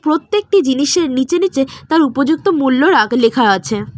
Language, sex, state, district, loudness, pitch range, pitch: Bengali, female, West Bengal, Cooch Behar, -14 LUFS, 260-345 Hz, 285 Hz